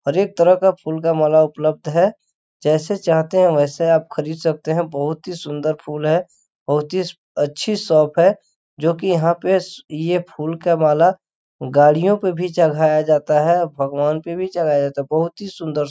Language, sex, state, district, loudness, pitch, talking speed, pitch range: Hindi, male, Chhattisgarh, Korba, -18 LUFS, 160 Hz, 180 wpm, 150-180 Hz